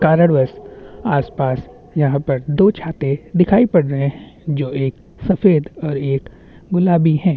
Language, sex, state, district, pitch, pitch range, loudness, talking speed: Hindi, male, Chhattisgarh, Bastar, 150 Hz, 140-175 Hz, -17 LUFS, 130 wpm